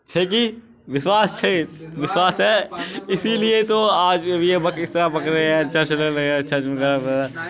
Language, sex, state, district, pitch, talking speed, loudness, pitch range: Maithili, male, Bihar, Supaul, 170 Hz, 130 wpm, -19 LUFS, 150-190 Hz